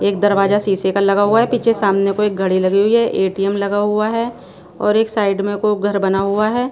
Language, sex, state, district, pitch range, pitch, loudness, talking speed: Hindi, female, Bihar, Patna, 195-215 Hz, 205 Hz, -16 LUFS, 250 wpm